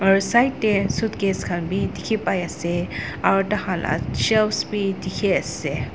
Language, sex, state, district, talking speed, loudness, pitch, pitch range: Nagamese, female, Nagaland, Dimapur, 140 wpm, -22 LUFS, 195 Hz, 175-210 Hz